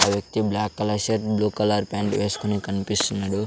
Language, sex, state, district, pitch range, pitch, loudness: Telugu, male, Andhra Pradesh, Sri Satya Sai, 100-105 Hz, 105 Hz, -24 LUFS